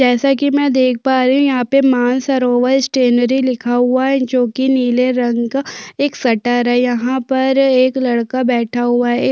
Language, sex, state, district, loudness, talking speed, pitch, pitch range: Hindi, female, Chhattisgarh, Sukma, -14 LUFS, 200 wpm, 255 Hz, 245-265 Hz